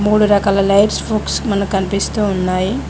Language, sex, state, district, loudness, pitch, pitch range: Telugu, female, Telangana, Mahabubabad, -15 LUFS, 200 Hz, 195-210 Hz